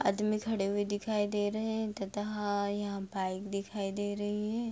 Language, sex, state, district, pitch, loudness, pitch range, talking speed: Hindi, female, Bihar, Begusarai, 205 Hz, -34 LUFS, 200-215 Hz, 190 wpm